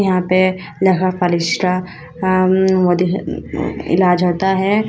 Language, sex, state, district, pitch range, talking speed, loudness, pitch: Hindi, female, Uttar Pradesh, Shamli, 180-190 Hz, 100 wpm, -16 LUFS, 185 Hz